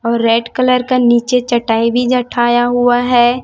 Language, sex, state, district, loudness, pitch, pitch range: Hindi, female, Chhattisgarh, Raipur, -13 LUFS, 240 Hz, 235-250 Hz